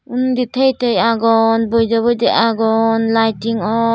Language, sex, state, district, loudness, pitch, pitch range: Chakma, female, Tripura, Dhalai, -15 LUFS, 230 Hz, 225-240 Hz